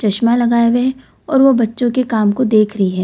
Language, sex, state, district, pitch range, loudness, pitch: Hindi, female, Bihar, Samastipur, 215-250 Hz, -14 LUFS, 235 Hz